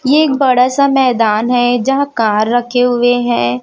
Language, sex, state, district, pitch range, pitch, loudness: Hindi, female, Chhattisgarh, Raipur, 235-270 Hz, 245 Hz, -12 LUFS